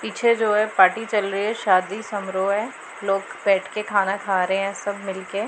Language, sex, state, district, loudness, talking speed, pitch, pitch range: Hindi, female, Punjab, Pathankot, -22 LUFS, 195 wpm, 200 Hz, 195-210 Hz